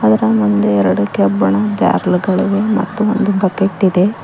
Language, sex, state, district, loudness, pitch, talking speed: Kannada, female, Karnataka, Koppal, -14 LUFS, 180 Hz, 125 wpm